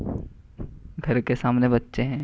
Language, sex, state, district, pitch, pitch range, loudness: Hindi, male, Uttar Pradesh, Hamirpur, 125 Hz, 120-130 Hz, -24 LUFS